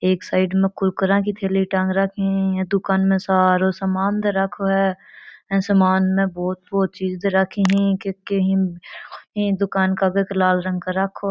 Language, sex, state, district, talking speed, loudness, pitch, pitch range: Marwari, female, Rajasthan, Churu, 210 wpm, -20 LUFS, 195 Hz, 190-195 Hz